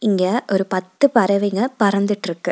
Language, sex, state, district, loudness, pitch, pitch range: Tamil, female, Tamil Nadu, Nilgiris, -18 LUFS, 200 Hz, 190-230 Hz